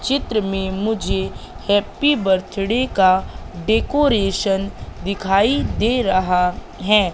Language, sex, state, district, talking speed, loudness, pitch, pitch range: Hindi, female, Madhya Pradesh, Katni, 90 wpm, -19 LUFS, 195 Hz, 190-220 Hz